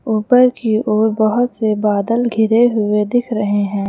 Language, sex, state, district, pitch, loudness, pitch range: Hindi, female, Uttar Pradesh, Lucknow, 220 Hz, -15 LUFS, 210-240 Hz